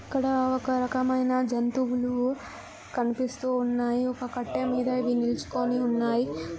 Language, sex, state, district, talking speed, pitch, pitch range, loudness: Telugu, female, Andhra Pradesh, Anantapur, 75 wpm, 250 Hz, 240-255 Hz, -27 LUFS